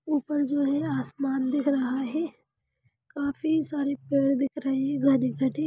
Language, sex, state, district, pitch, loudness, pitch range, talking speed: Hindi, female, Bihar, Lakhisarai, 280 Hz, -27 LUFS, 270-290 Hz, 150 wpm